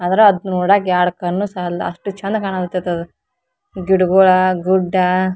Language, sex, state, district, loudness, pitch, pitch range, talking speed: Kannada, female, Karnataka, Dharwad, -16 LUFS, 185 Hz, 180-190 Hz, 145 wpm